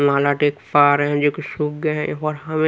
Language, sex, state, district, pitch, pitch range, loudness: Hindi, male, Haryana, Rohtak, 145 Hz, 145-155 Hz, -19 LUFS